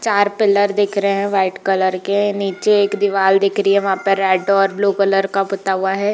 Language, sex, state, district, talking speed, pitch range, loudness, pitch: Hindi, female, Jharkhand, Jamtara, 215 wpm, 195-200 Hz, -16 LUFS, 195 Hz